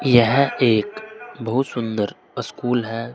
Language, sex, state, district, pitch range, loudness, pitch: Hindi, male, Uttar Pradesh, Saharanpur, 115-135 Hz, -21 LUFS, 120 Hz